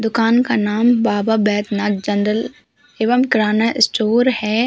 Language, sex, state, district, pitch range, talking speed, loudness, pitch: Hindi, female, Uttar Pradesh, Hamirpur, 210-240 Hz, 130 wpm, -16 LUFS, 225 Hz